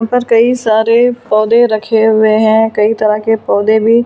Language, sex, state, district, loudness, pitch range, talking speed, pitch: Hindi, female, Delhi, New Delhi, -11 LUFS, 215-230 Hz, 205 wpm, 220 Hz